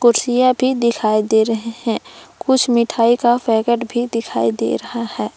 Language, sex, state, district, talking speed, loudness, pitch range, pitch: Hindi, female, Jharkhand, Palamu, 170 wpm, -17 LUFS, 225-245 Hz, 235 Hz